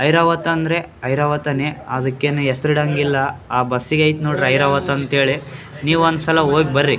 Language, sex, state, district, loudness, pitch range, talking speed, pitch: Kannada, male, Karnataka, Raichur, -18 LUFS, 140-155 Hz, 145 wpm, 145 Hz